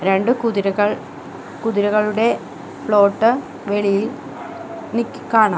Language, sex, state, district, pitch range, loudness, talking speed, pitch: Malayalam, female, Kerala, Kollam, 205-235 Hz, -19 LUFS, 75 wpm, 215 Hz